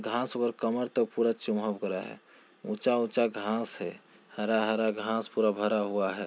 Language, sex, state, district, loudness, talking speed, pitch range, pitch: Hindi, male, Bihar, Jamui, -30 LUFS, 170 wpm, 105-115 Hz, 110 Hz